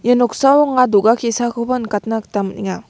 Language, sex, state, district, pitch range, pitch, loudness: Garo, female, Meghalaya, West Garo Hills, 210-250 Hz, 235 Hz, -16 LUFS